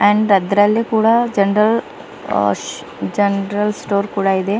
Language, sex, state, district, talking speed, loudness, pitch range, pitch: Kannada, female, Karnataka, Bidar, 115 wpm, -16 LUFS, 200-215 Hz, 205 Hz